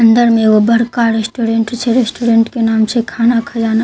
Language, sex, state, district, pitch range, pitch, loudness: Maithili, female, Bihar, Katihar, 225-235 Hz, 230 Hz, -13 LUFS